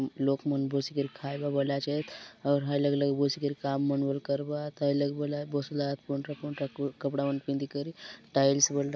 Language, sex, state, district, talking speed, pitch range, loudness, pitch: Halbi, male, Chhattisgarh, Bastar, 210 wpm, 140-145 Hz, -31 LUFS, 140 Hz